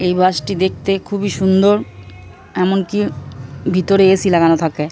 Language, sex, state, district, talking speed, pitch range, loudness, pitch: Bengali, female, West Bengal, Purulia, 160 wpm, 140-195 Hz, -15 LUFS, 185 Hz